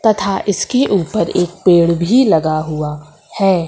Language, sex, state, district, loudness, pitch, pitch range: Hindi, female, Madhya Pradesh, Umaria, -15 LUFS, 180 Hz, 160-205 Hz